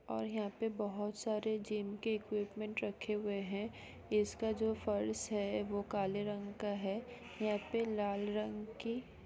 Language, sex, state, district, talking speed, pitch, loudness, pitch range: Hindi, female, Jharkhand, Sahebganj, 160 wpm, 210 Hz, -39 LUFS, 205-220 Hz